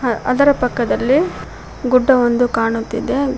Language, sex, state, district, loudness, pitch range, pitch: Kannada, female, Karnataka, Koppal, -16 LUFS, 235-265 Hz, 250 Hz